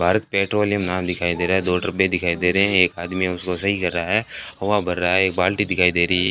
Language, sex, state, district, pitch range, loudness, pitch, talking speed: Hindi, male, Rajasthan, Bikaner, 90-100 Hz, -20 LUFS, 90 Hz, 285 wpm